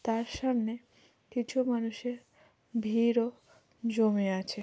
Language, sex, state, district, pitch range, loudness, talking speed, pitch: Bengali, female, West Bengal, Kolkata, 225-245 Hz, -32 LUFS, 90 wpm, 230 Hz